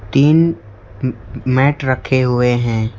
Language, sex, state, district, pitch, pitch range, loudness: Hindi, male, West Bengal, Alipurduar, 125 Hz, 110-135 Hz, -16 LUFS